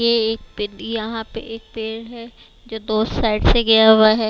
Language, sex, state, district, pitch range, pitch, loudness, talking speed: Hindi, female, Bihar, West Champaran, 220-230 Hz, 225 Hz, -18 LUFS, 210 wpm